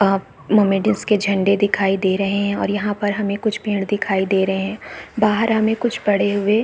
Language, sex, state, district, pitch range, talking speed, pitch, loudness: Hindi, female, Chhattisgarh, Bastar, 195-210 Hz, 225 wpm, 205 Hz, -19 LUFS